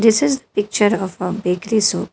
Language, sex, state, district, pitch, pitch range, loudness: English, female, Telangana, Hyderabad, 205 Hz, 185-220 Hz, -18 LUFS